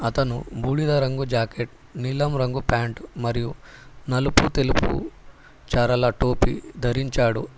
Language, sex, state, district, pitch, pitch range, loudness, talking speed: Telugu, male, Telangana, Hyderabad, 125 Hz, 120-135 Hz, -24 LUFS, 105 wpm